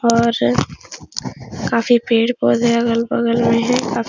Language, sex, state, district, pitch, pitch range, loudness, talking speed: Hindi, female, Bihar, Supaul, 235 Hz, 230-235 Hz, -17 LUFS, 120 wpm